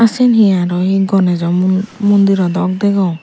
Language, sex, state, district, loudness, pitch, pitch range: Chakma, female, Tripura, Unakoti, -13 LUFS, 190 Hz, 180-205 Hz